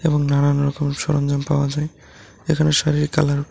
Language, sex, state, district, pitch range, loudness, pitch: Bengali, male, Tripura, West Tripura, 140-150 Hz, -20 LUFS, 145 Hz